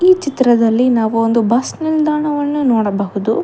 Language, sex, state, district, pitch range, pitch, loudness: Kannada, female, Karnataka, Bangalore, 225-295 Hz, 245 Hz, -15 LUFS